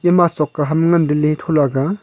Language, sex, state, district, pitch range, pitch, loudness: Wancho, male, Arunachal Pradesh, Longding, 150-170 Hz, 155 Hz, -16 LUFS